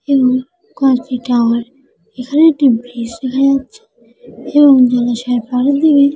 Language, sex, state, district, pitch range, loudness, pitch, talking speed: Bengali, female, West Bengal, Jalpaiguri, 245-280 Hz, -13 LUFS, 255 Hz, 95 wpm